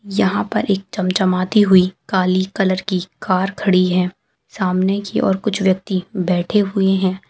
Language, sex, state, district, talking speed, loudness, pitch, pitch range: Hindi, female, Chhattisgarh, Jashpur, 155 wpm, -18 LUFS, 190 Hz, 185-195 Hz